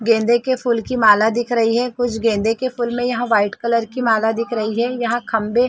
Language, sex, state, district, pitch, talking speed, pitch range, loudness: Hindi, female, Chhattisgarh, Rajnandgaon, 235 Hz, 255 wpm, 225-245 Hz, -18 LUFS